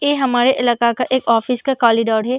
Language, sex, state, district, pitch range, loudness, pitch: Hindi, female, Bihar, Samastipur, 235-260 Hz, -16 LUFS, 250 Hz